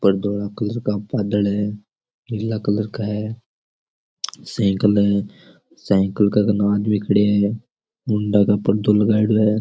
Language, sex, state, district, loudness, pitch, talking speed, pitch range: Rajasthani, male, Rajasthan, Churu, -20 LUFS, 105 Hz, 145 wpm, 100-110 Hz